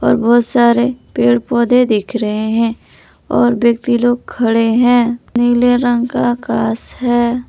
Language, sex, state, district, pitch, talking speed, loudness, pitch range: Hindi, female, Jharkhand, Palamu, 240 Hz, 145 wpm, -14 LUFS, 225-245 Hz